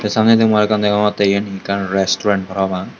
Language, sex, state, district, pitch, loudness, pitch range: Chakma, male, Tripura, Unakoti, 100 Hz, -16 LUFS, 95-105 Hz